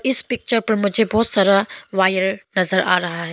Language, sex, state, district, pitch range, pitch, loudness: Hindi, female, Arunachal Pradesh, Longding, 185-225 Hz, 195 Hz, -18 LUFS